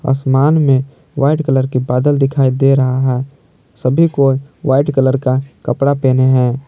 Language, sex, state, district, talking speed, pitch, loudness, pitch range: Hindi, male, Jharkhand, Palamu, 160 wpm, 135 Hz, -14 LUFS, 130-140 Hz